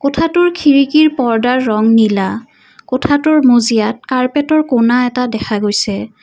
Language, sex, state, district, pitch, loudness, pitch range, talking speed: Assamese, female, Assam, Kamrup Metropolitan, 250 Hz, -13 LUFS, 225-290 Hz, 115 wpm